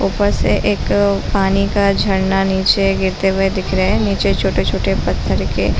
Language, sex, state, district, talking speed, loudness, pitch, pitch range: Hindi, female, Chhattisgarh, Bilaspur, 165 wpm, -16 LUFS, 195 Hz, 190-200 Hz